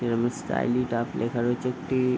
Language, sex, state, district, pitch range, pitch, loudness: Bengali, male, West Bengal, Paschim Medinipur, 120-125 Hz, 120 Hz, -27 LUFS